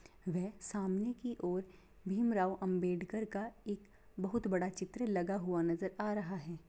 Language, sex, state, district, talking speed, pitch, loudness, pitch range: Hindi, female, Bihar, Samastipur, 160 wpm, 190 Hz, -38 LUFS, 180-210 Hz